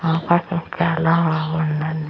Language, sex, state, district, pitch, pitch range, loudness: Telugu, female, Andhra Pradesh, Annamaya, 165 Hz, 160-170 Hz, -20 LUFS